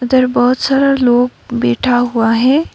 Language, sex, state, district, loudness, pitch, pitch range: Hindi, female, West Bengal, Darjeeling, -13 LUFS, 245 Hz, 240-265 Hz